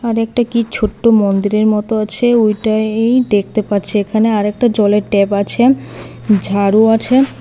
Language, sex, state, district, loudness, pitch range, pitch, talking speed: Bengali, female, Tripura, West Tripura, -13 LUFS, 205-230 Hz, 215 Hz, 130 wpm